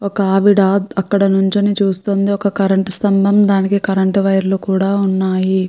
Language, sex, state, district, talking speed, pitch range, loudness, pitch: Telugu, female, Andhra Pradesh, Krishna, 135 wpm, 195-200 Hz, -14 LUFS, 195 Hz